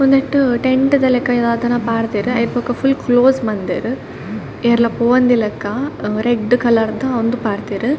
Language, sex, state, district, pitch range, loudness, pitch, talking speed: Tulu, female, Karnataka, Dakshina Kannada, 225-255 Hz, -16 LUFS, 240 Hz, 135 wpm